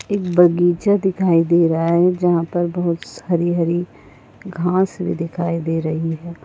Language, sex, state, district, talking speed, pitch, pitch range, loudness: Hindi, female, Goa, North and South Goa, 160 wpm, 170 Hz, 165-175 Hz, -18 LUFS